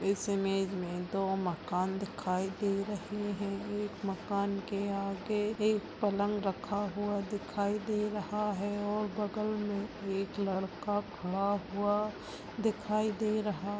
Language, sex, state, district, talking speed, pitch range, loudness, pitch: Hindi, female, Chhattisgarh, Balrampur, 140 wpm, 195-210 Hz, -34 LUFS, 205 Hz